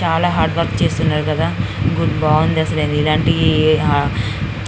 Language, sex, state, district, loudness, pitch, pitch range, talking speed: Telugu, female, Andhra Pradesh, Guntur, -16 LUFS, 150 Hz, 115-155 Hz, 130 wpm